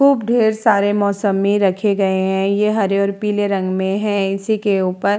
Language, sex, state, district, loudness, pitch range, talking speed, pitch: Hindi, female, Uttar Pradesh, Jalaun, -17 LUFS, 195-210 Hz, 210 wpm, 200 Hz